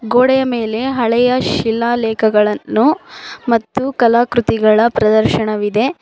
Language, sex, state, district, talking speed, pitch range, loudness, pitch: Kannada, female, Karnataka, Bangalore, 70 wpm, 220-250 Hz, -14 LUFS, 230 Hz